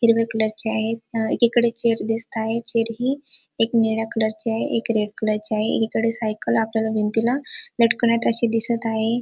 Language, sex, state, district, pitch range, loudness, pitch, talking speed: Marathi, female, Maharashtra, Dhule, 220-235 Hz, -22 LUFS, 225 Hz, 180 wpm